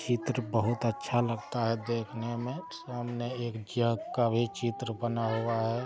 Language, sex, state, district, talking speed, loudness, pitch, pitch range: Hindi, male, Bihar, Araria, 175 wpm, -32 LUFS, 120 Hz, 115-120 Hz